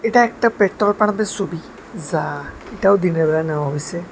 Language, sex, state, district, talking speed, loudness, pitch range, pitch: Bengali, male, Tripura, West Tripura, 160 wpm, -19 LUFS, 165-215 Hz, 195 Hz